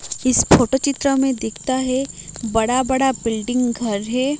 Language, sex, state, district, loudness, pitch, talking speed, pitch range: Hindi, female, Odisha, Malkangiri, -19 LUFS, 255 Hz, 150 wpm, 225-265 Hz